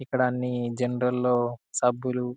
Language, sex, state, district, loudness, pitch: Telugu, male, Telangana, Karimnagar, -26 LUFS, 125 Hz